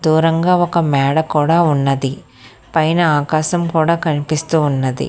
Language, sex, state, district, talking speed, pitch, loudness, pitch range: Telugu, female, Telangana, Hyderabad, 120 wpm, 155 Hz, -15 LUFS, 140-165 Hz